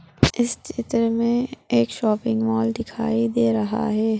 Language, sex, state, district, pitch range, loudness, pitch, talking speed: Hindi, male, Bihar, Samastipur, 220-235 Hz, -22 LUFS, 230 Hz, 145 wpm